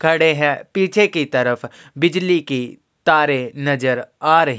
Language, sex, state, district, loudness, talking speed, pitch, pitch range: Hindi, male, Uttar Pradesh, Jyotiba Phule Nagar, -18 LUFS, 145 wpm, 150 Hz, 130-165 Hz